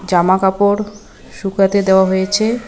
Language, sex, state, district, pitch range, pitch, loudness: Bengali, female, West Bengal, Cooch Behar, 190-205 Hz, 195 Hz, -14 LUFS